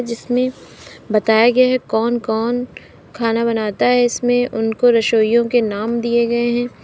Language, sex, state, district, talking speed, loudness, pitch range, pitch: Hindi, female, Uttar Pradesh, Lalitpur, 150 wpm, -17 LUFS, 225-245 Hz, 235 Hz